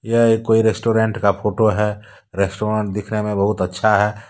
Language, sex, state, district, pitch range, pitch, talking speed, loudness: Hindi, male, Jharkhand, Deoghar, 105-110 Hz, 105 Hz, 180 wpm, -18 LUFS